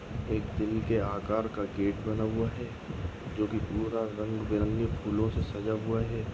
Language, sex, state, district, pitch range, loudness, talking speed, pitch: Hindi, male, Goa, North and South Goa, 105-110 Hz, -32 LUFS, 180 wpm, 110 Hz